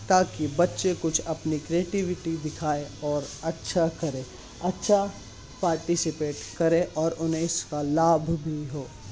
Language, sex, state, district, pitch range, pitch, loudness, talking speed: Hindi, male, Bihar, Saharsa, 150-170 Hz, 165 Hz, -27 LUFS, 120 wpm